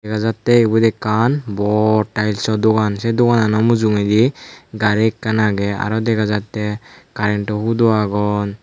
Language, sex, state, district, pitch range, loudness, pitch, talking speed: Chakma, male, Tripura, Unakoti, 105-115 Hz, -17 LUFS, 110 Hz, 125 wpm